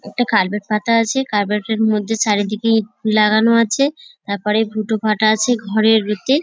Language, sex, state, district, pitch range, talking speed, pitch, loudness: Bengali, female, West Bengal, Dakshin Dinajpur, 210-230 Hz, 160 wpm, 220 Hz, -17 LUFS